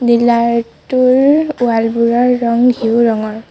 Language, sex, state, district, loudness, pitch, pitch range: Assamese, female, Assam, Sonitpur, -13 LUFS, 235 Hz, 235-250 Hz